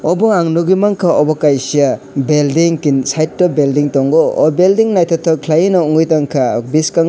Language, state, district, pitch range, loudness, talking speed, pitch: Kokborok, Tripura, West Tripura, 145-175 Hz, -13 LUFS, 180 wpm, 155 Hz